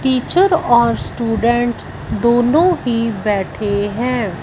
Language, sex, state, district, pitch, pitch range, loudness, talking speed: Hindi, female, Punjab, Fazilka, 240 Hz, 225-255 Hz, -16 LUFS, 95 wpm